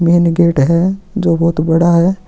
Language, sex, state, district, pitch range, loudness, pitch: Hindi, male, Chhattisgarh, Kabirdham, 170-180 Hz, -13 LUFS, 170 Hz